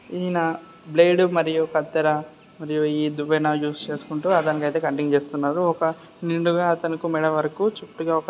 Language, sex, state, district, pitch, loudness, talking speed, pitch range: Telugu, male, Karnataka, Dharwad, 160 Hz, -22 LUFS, 145 wpm, 150-170 Hz